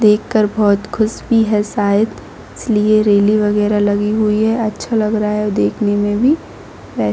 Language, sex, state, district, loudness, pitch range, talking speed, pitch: Hindi, female, Jharkhand, Jamtara, -15 LUFS, 205-220 Hz, 170 wpm, 210 Hz